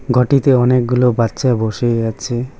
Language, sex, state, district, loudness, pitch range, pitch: Bengali, male, West Bengal, Cooch Behar, -15 LUFS, 115-125 Hz, 125 Hz